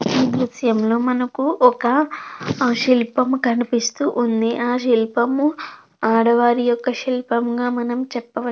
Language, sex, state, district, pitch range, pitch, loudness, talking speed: Telugu, female, Andhra Pradesh, Krishna, 235-255 Hz, 245 Hz, -19 LUFS, 105 wpm